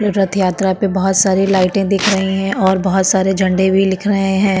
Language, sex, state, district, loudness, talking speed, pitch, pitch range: Hindi, female, Uttarakhand, Tehri Garhwal, -14 LUFS, 220 wpm, 190 Hz, 190-195 Hz